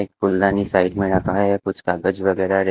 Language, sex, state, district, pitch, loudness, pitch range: Hindi, male, Himachal Pradesh, Shimla, 95 Hz, -19 LUFS, 95-100 Hz